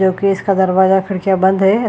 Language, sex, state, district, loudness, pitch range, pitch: Hindi, female, Chhattisgarh, Bilaspur, -14 LUFS, 190-195 Hz, 190 Hz